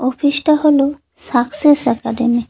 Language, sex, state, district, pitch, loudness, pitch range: Bengali, female, West Bengal, Cooch Behar, 280 Hz, -15 LUFS, 245-295 Hz